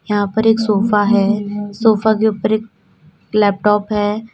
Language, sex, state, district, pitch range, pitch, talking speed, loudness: Hindi, female, Uttar Pradesh, Lalitpur, 205-220 Hz, 210 Hz, 150 wpm, -16 LUFS